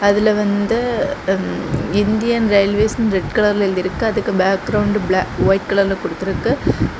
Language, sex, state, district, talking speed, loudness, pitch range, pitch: Tamil, female, Tamil Nadu, Kanyakumari, 135 wpm, -17 LUFS, 195-215 Hz, 205 Hz